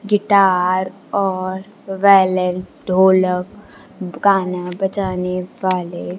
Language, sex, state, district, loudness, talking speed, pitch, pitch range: Hindi, female, Bihar, Kaimur, -17 LUFS, 70 wpm, 185 Hz, 180-195 Hz